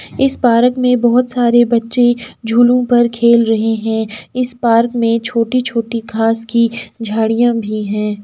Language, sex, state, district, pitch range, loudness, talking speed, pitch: Hindi, female, Uttar Pradesh, Etah, 225-240 Hz, -14 LUFS, 155 wpm, 235 Hz